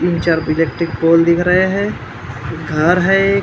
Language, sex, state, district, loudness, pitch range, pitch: Hindi, male, Maharashtra, Gondia, -15 LUFS, 155-180 Hz, 165 Hz